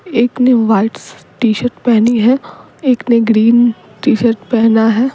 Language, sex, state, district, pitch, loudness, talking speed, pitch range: Hindi, female, Bihar, Patna, 235 Hz, -12 LUFS, 150 wpm, 225-245 Hz